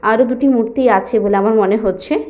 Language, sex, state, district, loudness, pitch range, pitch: Bengali, female, West Bengal, Jhargram, -14 LUFS, 200-245 Hz, 215 Hz